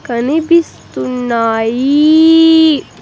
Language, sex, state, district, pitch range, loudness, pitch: Telugu, female, Andhra Pradesh, Sri Satya Sai, 230-320 Hz, -10 LUFS, 280 Hz